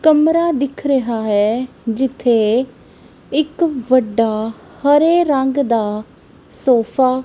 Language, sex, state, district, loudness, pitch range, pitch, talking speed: Punjabi, female, Punjab, Kapurthala, -16 LUFS, 230-285 Hz, 255 Hz, 100 wpm